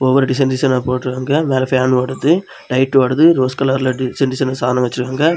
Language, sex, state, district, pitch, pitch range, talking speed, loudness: Tamil, male, Tamil Nadu, Kanyakumari, 130 Hz, 130-135 Hz, 155 wpm, -15 LUFS